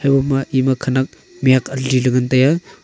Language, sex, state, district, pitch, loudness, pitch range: Wancho, male, Arunachal Pradesh, Longding, 130 Hz, -17 LUFS, 130-135 Hz